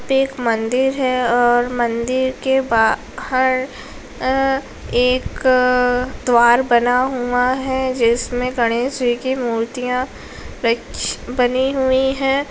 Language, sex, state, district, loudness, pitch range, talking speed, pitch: Hindi, female, Bihar, Lakhisarai, -18 LUFS, 240-260 Hz, 105 wpm, 250 Hz